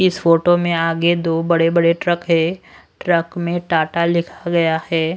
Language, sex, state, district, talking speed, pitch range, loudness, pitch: Hindi, male, Odisha, Sambalpur, 175 wpm, 165-175 Hz, -17 LUFS, 170 Hz